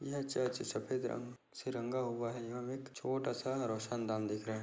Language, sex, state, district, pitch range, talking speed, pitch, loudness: Hindi, male, Chhattisgarh, Korba, 115-130 Hz, 220 wpm, 120 Hz, -39 LUFS